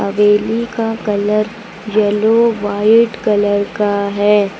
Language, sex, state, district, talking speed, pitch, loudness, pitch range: Hindi, female, Uttar Pradesh, Lucknow, 105 wpm, 210 Hz, -14 LUFS, 205-225 Hz